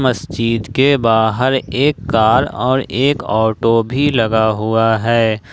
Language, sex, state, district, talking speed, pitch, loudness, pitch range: Hindi, male, Jharkhand, Ranchi, 140 wpm, 115 Hz, -15 LUFS, 110-130 Hz